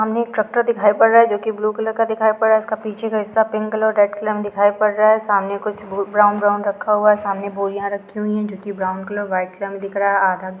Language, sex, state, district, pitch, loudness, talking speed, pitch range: Hindi, female, Andhra Pradesh, Krishna, 210 Hz, -18 LUFS, 295 wpm, 200-215 Hz